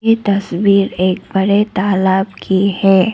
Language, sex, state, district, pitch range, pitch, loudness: Hindi, female, Arunachal Pradesh, Lower Dibang Valley, 190-200 Hz, 195 Hz, -14 LUFS